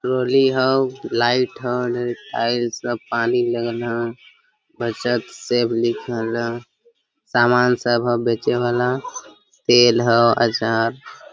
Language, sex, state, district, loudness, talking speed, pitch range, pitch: Hindi, male, Jharkhand, Sahebganj, -19 LUFS, 115 wpm, 115-125 Hz, 120 Hz